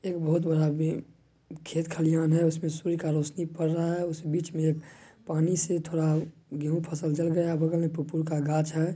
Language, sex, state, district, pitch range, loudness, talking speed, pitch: Maithili, male, Bihar, Madhepura, 155-165 Hz, -28 LUFS, 200 wpm, 160 Hz